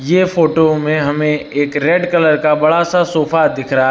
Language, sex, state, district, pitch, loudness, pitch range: Hindi, male, Uttar Pradesh, Lucknow, 155 Hz, -14 LUFS, 150-170 Hz